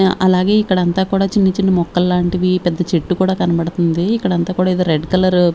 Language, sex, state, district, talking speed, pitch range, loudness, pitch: Telugu, female, Andhra Pradesh, Sri Satya Sai, 185 wpm, 175-190 Hz, -15 LUFS, 180 Hz